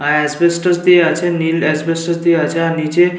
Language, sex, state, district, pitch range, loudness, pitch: Bengali, male, West Bengal, Paschim Medinipur, 155-175 Hz, -14 LUFS, 165 Hz